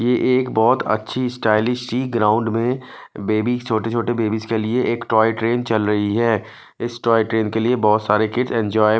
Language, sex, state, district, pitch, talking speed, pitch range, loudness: Hindi, male, Punjab, Fazilka, 115 Hz, 200 wpm, 110-120 Hz, -19 LUFS